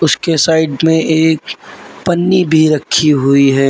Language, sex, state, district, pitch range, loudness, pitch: Hindi, male, Uttar Pradesh, Lalitpur, 145-160 Hz, -12 LUFS, 160 Hz